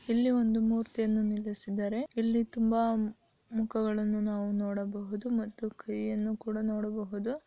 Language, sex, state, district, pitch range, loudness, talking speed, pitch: Kannada, female, Karnataka, Dharwad, 210-230 Hz, -32 LUFS, 105 wpm, 215 Hz